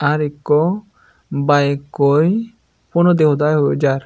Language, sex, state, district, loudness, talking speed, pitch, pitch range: Chakma, male, Tripura, Unakoti, -16 LUFS, 135 wpm, 150 Hz, 140-170 Hz